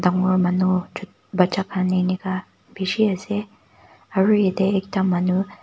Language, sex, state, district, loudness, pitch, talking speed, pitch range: Nagamese, female, Nagaland, Kohima, -21 LUFS, 190 Hz, 130 wpm, 185-195 Hz